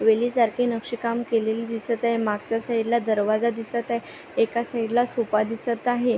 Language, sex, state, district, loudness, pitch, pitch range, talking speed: Marathi, female, Maharashtra, Pune, -24 LUFS, 230 Hz, 225-235 Hz, 165 wpm